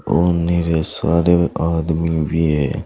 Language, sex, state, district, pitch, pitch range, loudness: Hindi, male, Uttar Pradesh, Saharanpur, 85 Hz, 80-85 Hz, -17 LUFS